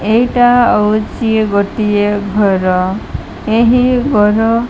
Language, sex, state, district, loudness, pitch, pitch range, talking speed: Odia, female, Odisha, Malkangiri, -12 LUFS, 215 Hz, 205-235 Hz, 90 wpm